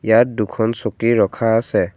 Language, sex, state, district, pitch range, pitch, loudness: Assamese, male, Assam, Kamrup Metropolitan, 110-115 Hz, 115 Hz, -18 LUFS